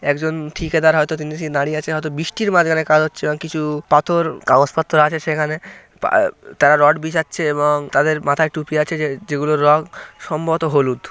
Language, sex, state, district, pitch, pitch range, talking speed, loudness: Bengali, male, West Bengal, North 24 Parganas, 155 Hz, 150-160 Hz, 160 wpm, -17 LUFS